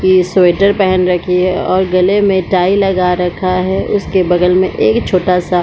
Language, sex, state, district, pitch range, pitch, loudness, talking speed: Hindi, female, Chhattisgarh, Bilaspur, 180-190 Hz, 185 Hz, -12 LUFS, 200 wpm